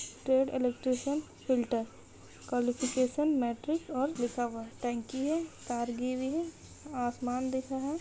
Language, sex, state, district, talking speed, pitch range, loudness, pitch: Hindi, female, Bihar, Lakhisarai, 140 wpm, 245-280 Hz, -33 LUFS, 255 Hz